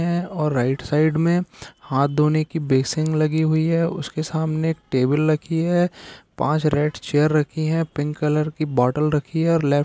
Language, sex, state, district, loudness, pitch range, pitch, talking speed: Hindi, male, Bihar, Gopalganj, -21 LUFS, 145-160 Hz, 155 Hz, 190 wpm